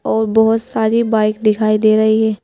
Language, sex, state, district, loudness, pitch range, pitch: Hindi, female, Uttar Pradesh, Saharanpur, -14 LUFS, 215-220 Hz, 220 Hz